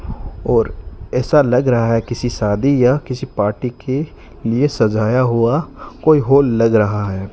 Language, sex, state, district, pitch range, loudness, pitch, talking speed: Hindi, male, Rajasthan, Bikaner, 110-135 Hz, -16 LUFS, 120 Hz, 155 wpm